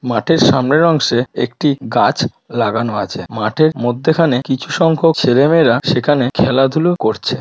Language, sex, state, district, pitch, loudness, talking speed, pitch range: Bengali, female, West Bengal, Malda, 140 Hz, -14 LUFS, 130 wpm, 125-160 Hz